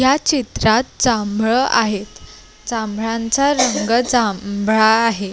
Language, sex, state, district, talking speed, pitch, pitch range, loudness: Marathi, female, Maharashtra, Sindhudurg, 90 wpm, 225 Hz, 215-250 Hz, -17 LUFS